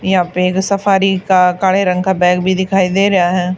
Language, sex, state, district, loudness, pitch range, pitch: Hindi, female, Haryana, Charkhi Dadri, -13 LUFS, 180-190 Hz, 185 Hz